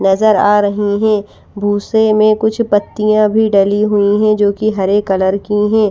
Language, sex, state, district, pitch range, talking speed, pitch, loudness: Hindi, female, Chandigarh, Chandigarh, 205-215 Hz, 180 wpm, 210 Hz, -13 LUFS